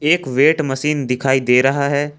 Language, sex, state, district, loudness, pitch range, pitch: Hindi, male, Jharkhand, Ranchi, -16 LUFS, 130-150 Hz, 140 Hz